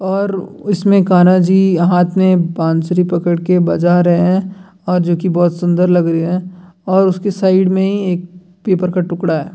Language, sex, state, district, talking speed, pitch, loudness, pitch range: Hindi, male, Bihar, Jamui, 190 wpm, 180 Hz, -14 LUFS, 175-190 Hz